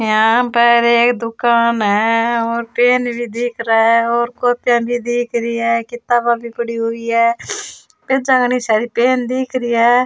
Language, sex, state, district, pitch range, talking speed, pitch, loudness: Rajasthani, female, Rajasthan, Churu, 230-245 Hz, 165 wpm, 235 Hz, -15 LUFS